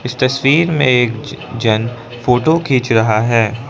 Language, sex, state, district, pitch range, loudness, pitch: Hindi, male, Arunachal Pradesh, Lower Dibang Valley, 115-135 Hz, -14 LUFS, 125 Hz